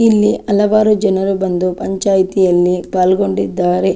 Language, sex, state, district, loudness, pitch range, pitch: Kannada, female, Karnataka, Chamarajanagar, -14 LUFS, 185-205 Hz, 190 Hz